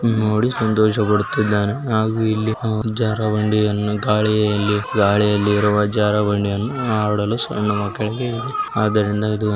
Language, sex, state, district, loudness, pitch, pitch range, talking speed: Kannada, male, Karnataka, Belgaum, -19 LUFS, 105 Hz, 105-110 Hz, 130 wpm